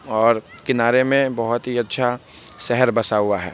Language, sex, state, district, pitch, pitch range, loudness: Hindi, male, Bihar, Begusarai, 115 Hz, 110-125 Hz, -19 LUFS